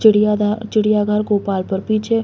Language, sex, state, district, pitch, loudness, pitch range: Bundeli, female, Uttar Pradesh, Hamirpur, 210 Hz, -17 LUFS, 205-215 Hz